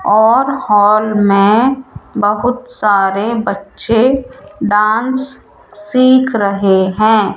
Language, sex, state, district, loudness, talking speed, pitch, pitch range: Hindi, female, Rajasthan, Jaipur, -12 LUFS, 80 wpm, 220 Hz, 205-255 Hz